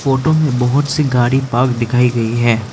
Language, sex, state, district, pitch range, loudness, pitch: Hindi, male, Arunachal Pradesh, Lower Dibang Valley, 120-140 Hz, -15 LUFS, 125 Hz